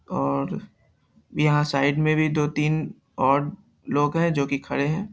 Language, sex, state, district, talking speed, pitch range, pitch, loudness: Hindi, male, Bihar, Saharsa, 150 wpm, 140-155 Hz, 150 Hz, -23 LUFS